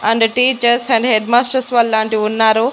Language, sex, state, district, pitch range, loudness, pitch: Telugu, female, Andhra Pradesh, Annamaya, 220-245 Hz, -13 LUFS, 230 Hz